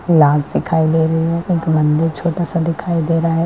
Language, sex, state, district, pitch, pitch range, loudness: Hindi, female, Bihar, Madhepura, 165 Hz, 160-170 Hz, -16 LUFS